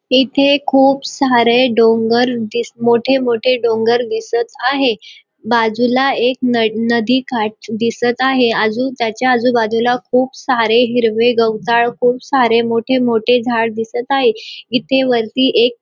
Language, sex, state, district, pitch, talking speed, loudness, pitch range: Marathi, female, Maharashtra, Dhule, 245 Hz, 130 wpm, -14 LUFS, 230-260 Hz